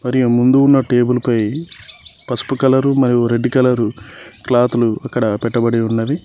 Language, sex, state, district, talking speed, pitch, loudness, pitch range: Telugu, male, Telangana, Mahabubabad, 145 wpm, 120 Hz, -15 LUFS, 115-130 Hz